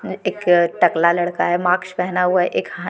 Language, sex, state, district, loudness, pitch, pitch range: Hindi, female, Jharkhand, Deoghar, -18 LUFS, 180 Hz, 175-185 Hz